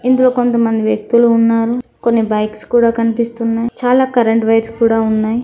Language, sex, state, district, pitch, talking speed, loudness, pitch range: Telugu, female, Telangana, Mahabubabad, 230 Hz, 145 wpm, -14 LUFS, 225-240 Hz